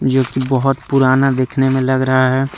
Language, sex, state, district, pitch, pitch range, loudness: Hindi, male, Jharkhand, Deoghar, 130 Hz, 130-135 Hz, -15 LUFS